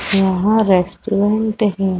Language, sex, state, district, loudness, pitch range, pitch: Hindi, female, Chhattisgarh, Raigarh, -16 LUFS, 190-215 Hz, 200 Hz